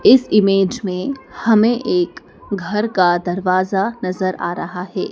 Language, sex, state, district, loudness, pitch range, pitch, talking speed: Hindi, female, Madhya Pradesh, Dhar, -18 LUFS, 185-230 Hz, 195 Hz, 140 wpm